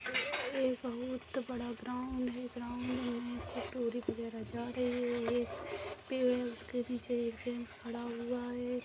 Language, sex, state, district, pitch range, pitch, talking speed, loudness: Hindi, female, Chhattisgarh, Raigarh, 240-250 Hz, 245 Hz, 150 wpm, -38 LUFS